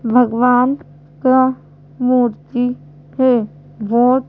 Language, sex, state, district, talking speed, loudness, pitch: Hindi, female, Madhya Pradesh, Bhopal, 70 wpm, -16 LUFS, 245 Hz